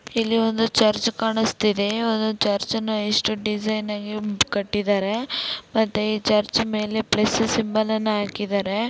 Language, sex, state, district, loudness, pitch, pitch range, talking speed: Kannada, female, Karnataka, Dakshina Kannada, -22 LUFS, 215 Hz, 210-225 Hz, 120 wpm